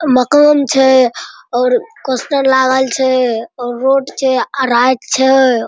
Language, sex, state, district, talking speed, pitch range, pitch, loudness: Maithili, female, Bihar, Araria, 125 wpm, 250-270 Hz, 260 Hz, -12 LUFS